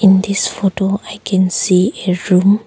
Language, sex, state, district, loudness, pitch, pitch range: English, female, Arunachal Pradesh, Longding, -15 LUFS, 195 Hz, 185-200 Hz